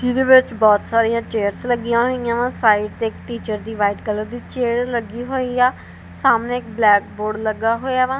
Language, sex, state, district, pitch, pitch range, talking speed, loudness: Punjabi, female, Punjab, Kapurthala, 230 Hz, 215-245 Hz, 185 wpm, -19 LUFS